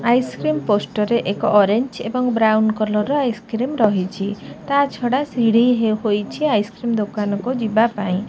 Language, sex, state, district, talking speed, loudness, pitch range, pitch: Odia, female, Odisha, Khordha, 140 wpm, -19 LUFS, 210-245 Hz, 225 Hz